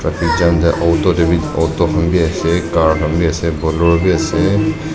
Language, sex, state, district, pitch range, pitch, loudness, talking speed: Nagamese, male, Nagaland, Dimapur, 80-85 Hz, 85 Hz, -14 LUFS, 120 wpm